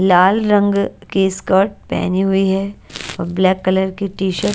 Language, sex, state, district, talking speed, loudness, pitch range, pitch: Hindi, female, Odisha, Nuapada, 185 wpm, -16 LUFS, 185-200 Hz, 190 Hz